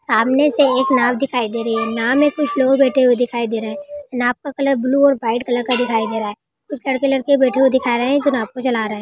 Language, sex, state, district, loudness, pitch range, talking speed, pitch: Hindi, female, West Bengal, Kolkata, -17 LUFS, 230-275 Hz, 285 wpm, 255 Hz